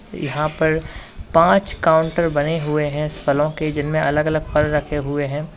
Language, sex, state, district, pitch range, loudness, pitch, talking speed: Hindi, male, Uttar Pradesh, Lalitpur, 150-160 Hz, -19 LUFS, 150 Hz, 170 wpm